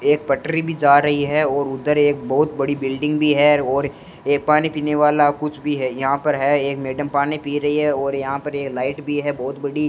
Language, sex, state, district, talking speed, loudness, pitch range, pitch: Hindi, male, Rajasthan, Bikaner, 245 wpm, -19 LUFS, 140-150 Hz, 145 Hz